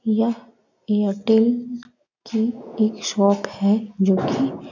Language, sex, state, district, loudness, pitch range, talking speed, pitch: Hindi, female, West Bengal, North 24 Parganas, -21 LUFS, 205-235 Hz, 100 wpm, 220 Hz